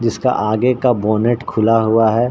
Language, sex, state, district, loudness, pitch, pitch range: Hindi, male, Bihar, Saran, -15 LUFS, 115 Hz, 110-120 Hz